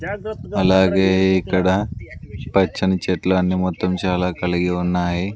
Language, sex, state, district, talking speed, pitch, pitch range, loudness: Telugu, male, Andhra Pradesh, Sri Satya Sai, 100 wpm, 95 Hz, 90-95 Hz, -19 LUFS